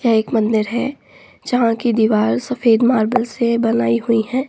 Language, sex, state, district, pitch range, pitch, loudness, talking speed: Hindi, female, Uttar Pradesh, Budaun, 220-245 Hz, 230 Hz, -17 LUFS, 175 wpm